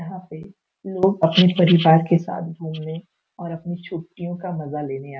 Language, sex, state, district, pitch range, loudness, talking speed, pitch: Hindi, female, Uttar Pradesh, Gorakhpur, 160-180 Hz, -20 LUFS, 185 wpm, 170 Hz